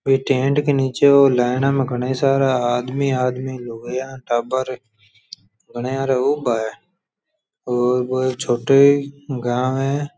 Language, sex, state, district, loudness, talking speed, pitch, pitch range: Rajasthani, male, Rajasthan, Churu, -19 LUFS, 120 wpm, 130 Hz, 125-135 Hz